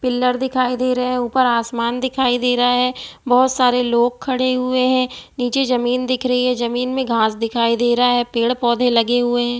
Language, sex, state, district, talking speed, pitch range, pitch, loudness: Hindi, female, Bihar, East Champaran, 200 wpm, 240-255 Hz, 250 Hz, -18 LUFS